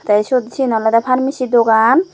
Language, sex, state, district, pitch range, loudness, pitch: Chakma, female, Tripura, Dhalai, 225-260 Hz, -14 LUFS, 240 Hz